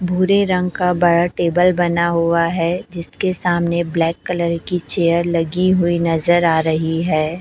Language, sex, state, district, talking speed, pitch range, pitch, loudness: Hindi, female, Chhattisgarh, Raipur, 160 wpm, 170-180 Hz, 170 Hz, -17 LUFS